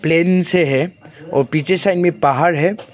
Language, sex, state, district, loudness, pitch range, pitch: Hindi, male, Arunachal Pradesh, Longding, -16 LUFS, 155-180 Hz, 170 Hz